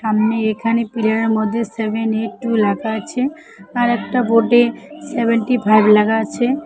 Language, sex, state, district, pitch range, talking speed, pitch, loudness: Bengali, female, West Bengal, Cooch Behar, 220-240 Hz, 135 wpm, 230 Hz, -17 LUFS